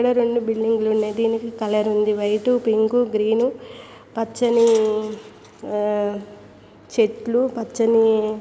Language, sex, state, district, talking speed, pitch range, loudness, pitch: Telugu, female, Andhra Pradesh, Krishna, 140 wpm, 215-230 Hz, -20 LUFS, 225 Hz